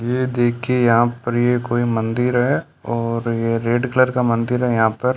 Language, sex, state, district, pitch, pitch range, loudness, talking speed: Hindi, male, Rajasthan, Bikaner, 120 Hz, 115-125 Hz, -19 LUFS, 195 wpm